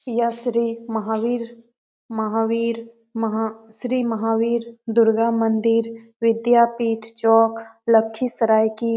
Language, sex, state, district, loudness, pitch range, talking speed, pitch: Hindi, female, Bihar, Lakhisarai, -21 LUFS, 225-235 Hz, 95 wpm, 230 Hz